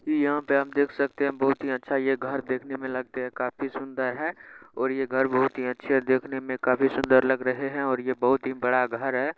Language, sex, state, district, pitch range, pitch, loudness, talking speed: Maithili, male, Bihar, Saharsa, 130-135 Hz, 130 Hz, -26 LUFS, 255 wpm